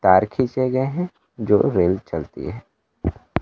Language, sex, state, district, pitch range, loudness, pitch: Hindi, male, Bihar, Kaimur, 105-135 Hz, -22 LUFS, 130 Hz